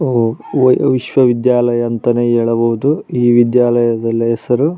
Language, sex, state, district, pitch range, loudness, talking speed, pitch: Kannada, male, Karnataka, Raichur, 115-130 Hz, -13 LUFS, 100 wpm, 120 Hz